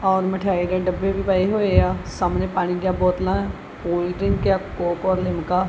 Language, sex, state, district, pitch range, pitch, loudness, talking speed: Punjabi, male, Punjab, Kapurthala, 180-190 Hz, 185 Hz, -22 LUFS, 180 wpm